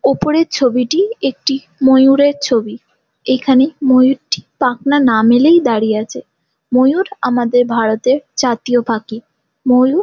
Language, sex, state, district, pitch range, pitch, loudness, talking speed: Bengali, female, West Bengal, Jalpaiguri, 245-280 Hz, 260 Hz, -13 LUFS, 115 wpm